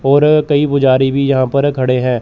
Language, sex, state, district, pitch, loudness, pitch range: Hindi, male, Chandigarh, Chandigarh, 140 Hz, -13 LUFS, 130-145 Hz